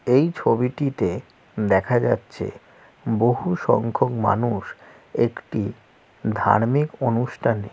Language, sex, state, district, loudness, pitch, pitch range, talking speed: Bengali, male, West Bengal, Jalpaiguri, -22 LUFS, 115 Hz, 105-125 Hz, 85 wpm